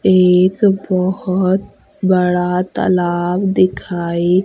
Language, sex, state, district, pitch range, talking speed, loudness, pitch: Hindi, female, Madhya Pradesh, Umaria, 180-190 Hz, 65 wpm, -15 LUFS, 185 Hz